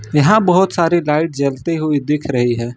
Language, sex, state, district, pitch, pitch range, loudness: Hindi, male, Uttar Pradesh, Lucknow, 150 Hz, 140-170 Hz, -15 LUFS